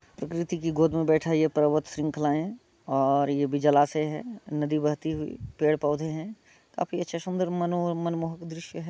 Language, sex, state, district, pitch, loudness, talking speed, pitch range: Hindi, male, Bihar, Muzaffarpur, 155 Hz, -27 LUFS, 175 wpm, 150-170 Hz